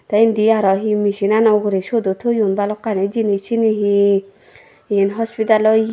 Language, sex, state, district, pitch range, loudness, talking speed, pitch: Chakma, female, Tripura, Dhalai, 200-220 Hz, -16 LUFS, 160 wpm, 210 Hz